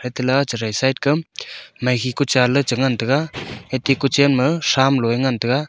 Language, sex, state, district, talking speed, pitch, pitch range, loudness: Wancho, male, Arunachal Pradesh, Longding, 180 wpm, 130 Hz, 125-140 Hz, -18 LUFS